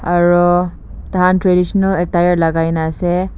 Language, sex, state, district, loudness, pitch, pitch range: Nagamese, female, Nagaland, Kohima, -14 LUFS, 175 Hz, 175-180 Hz